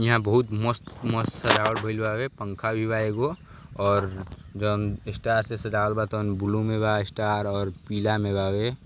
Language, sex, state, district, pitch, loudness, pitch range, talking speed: Bhojpuri, male, Uttar Pradesh, Gorakhpur, 105 Hz, -26 LUFS, 105-110 Hz, 175 wpm